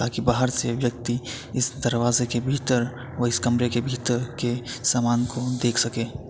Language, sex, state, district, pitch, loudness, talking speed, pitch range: Hindi, male, Uttar Pradesh, Etah, 120 Hz, -24 LUFS, 170 wpm, 120-125 Hz